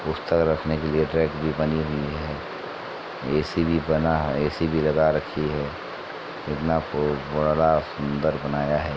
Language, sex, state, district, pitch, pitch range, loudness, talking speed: Hindi, male, Uttar Pradesh, Etah, 75 Hz, 75-80 Hz, -25 LUFS, 160 wpm